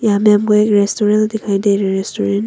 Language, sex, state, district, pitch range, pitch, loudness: Hindi, female, Arunachal Pradesh, Longding, 195-210 Hz, 205 Hz, -14 LUFS